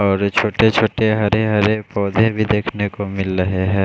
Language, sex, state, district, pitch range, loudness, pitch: Hindi, male, Odisha, Khordha, 100-110 Hz, -17 LUFS, 105 Hz